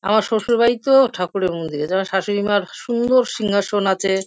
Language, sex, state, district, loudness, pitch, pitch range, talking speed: Bengali, female, West Bengal, Kolkata, -19 LUFS, 205 Hz, 190-235 Hz, 180 wpm